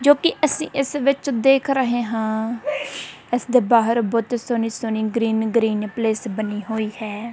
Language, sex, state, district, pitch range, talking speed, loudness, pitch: Punjabi, female, Punjab, Kapurthala, 220-270 Hz, 165 wpm, -21 LUFS, 235 Hz